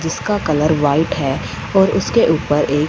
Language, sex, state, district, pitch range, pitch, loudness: Hindi, female, Punjab, Fazilka, 150-195 Hz, 160 Hz, -16 LUFS